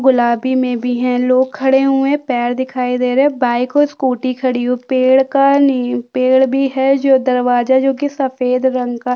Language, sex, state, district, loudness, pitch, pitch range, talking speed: Hindi, female, Chhattisgarh, Kabirdham, -14 LUFS, 260 Hz, 250-270 Hz, 205 wpm